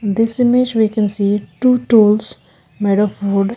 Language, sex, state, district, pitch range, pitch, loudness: English, female, Arunachal Pradesh, Lower Dibang Valley, 200-225 Hz, 210 Hz, -15 LUFS